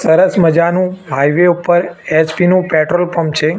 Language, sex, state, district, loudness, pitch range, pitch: Gujarati, male, Gujarat, Gandhinagar, -13 LUFS, 160-180 Hz, 175 Hz